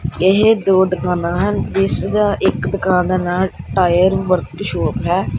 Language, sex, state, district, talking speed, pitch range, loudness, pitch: Punjabi, male, Punjab, Kapurthala, 155 wpm, 180-195 Hz, -16 LUFS, 185 Hz